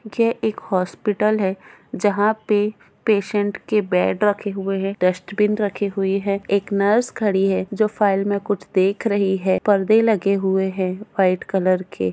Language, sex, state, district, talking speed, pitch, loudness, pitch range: Hindi, female, Goa, North and South Goa, 170 wpm, 200 Hz, -20 LUFS, 190-210 Hz